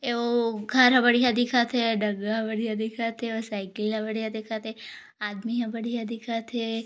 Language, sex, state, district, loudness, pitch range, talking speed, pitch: Hindi, female, Chhattisgarh, Korba, -26 LUFS, 220-235 Hz, 175 wpm, 225 Hz